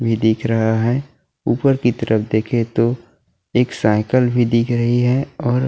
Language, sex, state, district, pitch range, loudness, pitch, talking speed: Hindi, male, Uttarakhand, Tehri Garhwal, 115-125 Hz, -18 LUFS, 120 Hz, 180 wpm